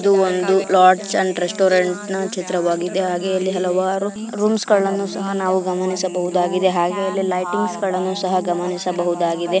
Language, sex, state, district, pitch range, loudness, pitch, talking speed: Kannada, female, Karnataka, Belgaum, 180-195 Hz, -19 LUFS, 185 Hz, 125 wpm